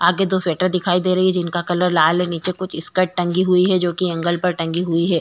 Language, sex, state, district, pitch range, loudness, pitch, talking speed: Hindi, female, Uttar Pradesh, Jyotiba Phule Nagar, 170-185 Hz, -18 LUFS, 180 Hz, 265 wpm